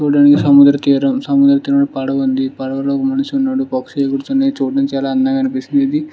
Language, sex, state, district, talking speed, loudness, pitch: Telugu, male, Andhra Pradesh, Srikakulam, 165 wpm, -14 LUFS, 140 Hz